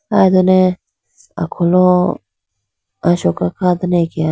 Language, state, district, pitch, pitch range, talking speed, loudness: Idu Mishmi, Arunachal Pradesh, Lower Dibang Valley, 180 Hz, 155-185 Hz, 95 wpm, -14 LUFS